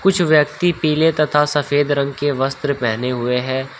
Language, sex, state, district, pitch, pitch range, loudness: Hindi, male, Uttar Pradesh, Shamli, 145 Hz, 130-155 Hz, -17 LUFS